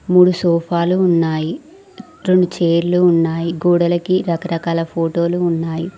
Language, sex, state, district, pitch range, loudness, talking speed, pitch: Telugu, female, Telangana, Mahabubabad, 165-180 Hz, -16 LUFS, 110 wpm, 170 Hz